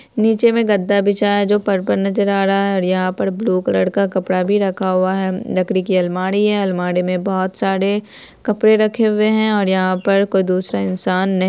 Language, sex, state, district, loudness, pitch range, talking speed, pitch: Hindi, female, Bihar, Saharsa, -17 LUFS, 185-205 Hz, 220 wpm, 195 Hz